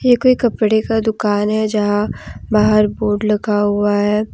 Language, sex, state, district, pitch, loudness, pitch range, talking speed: Hindi, female, Jharkhand, Deoghar, 215 Hz, -16 LUFS, 210-220 Hz, 165 wpm